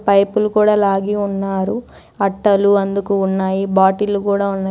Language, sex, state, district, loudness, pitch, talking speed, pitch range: Telugu, female, Telangana, Hyderabad, -16 LUFS, 200 Hz, 130 wpm, 195-205 Hz